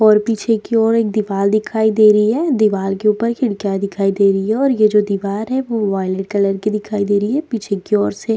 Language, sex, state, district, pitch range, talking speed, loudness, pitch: Hindi, female, Bihar, Vaishali, 200-225 Hz, 260 wpm, -16 LUFS, 210 Hz